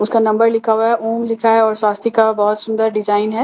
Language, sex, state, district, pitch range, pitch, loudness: Hindi, female, Bihar, Katihar, 215-225 Hz, 220 Hz, -15 LUFS